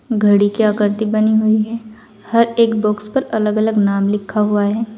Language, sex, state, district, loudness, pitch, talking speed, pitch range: Hindi, female, Uttar Pradesh, Saharanpur, -16 LUFS, 215 Hz, 190 wpm, 210-220 Hz